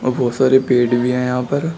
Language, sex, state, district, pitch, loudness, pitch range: Hindi, male, Uttar Pradesh, Shamli, 125 Hz, -16 LUFS, 125-130 Hz